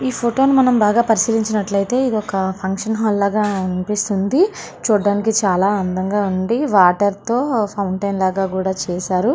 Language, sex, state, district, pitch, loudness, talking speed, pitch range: Telugu, female, Andhra Pradesh, Srikakulam, 205 Hz, -17 LUFS, 140 wpm, 190-225 Hz